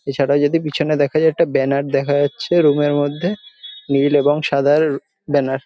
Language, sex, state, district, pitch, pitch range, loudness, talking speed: Bengali, male, West Bengal, Jhargram, 145 Hz, 140-155 Hz, -17 LUFS, 180 wpm